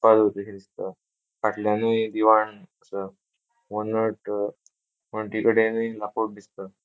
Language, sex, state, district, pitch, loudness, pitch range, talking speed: Konkani, male, Goa, North and South Goa, 110 Hz, -25 LUFS, 105-110 Hz, 115 wpm